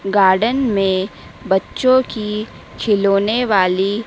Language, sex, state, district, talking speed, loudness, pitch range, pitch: Hindi, female, Madhya Pradesh, Dhar, 90 wpm, -16 LUFS, 190-220 Hz, 200 Hz